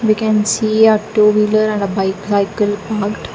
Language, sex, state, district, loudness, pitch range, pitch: English, female, Karnataka, Bangalore, -15 LUFS, 205-215 Hz, 210 Hz